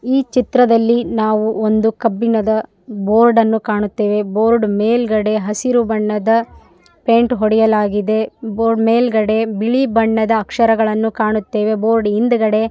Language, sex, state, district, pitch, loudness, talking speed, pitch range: Kannada, female, Karnataka, Raichur, 220 Hz, -15 LUFS, 105 wpm, 215-230 Hz